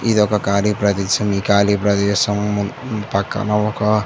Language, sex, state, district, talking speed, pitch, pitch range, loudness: Telugu, male, Andhra Pradesh, Chittoor, 180 wpm, 105 Hz, 100-105 Hz, -18 LUFS